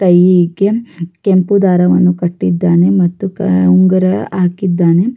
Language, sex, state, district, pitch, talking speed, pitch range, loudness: Kannada, female, Karnataka, Raichur, 180 Hz, 80 wpm, 175-190 Hz, -12 LUFS